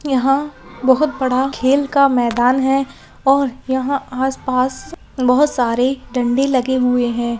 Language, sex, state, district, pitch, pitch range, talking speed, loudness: Hindi, female, Bihar, Lakhisarai, 260 Hz, 250-275 Hz, 130 wpm, -17 LUFS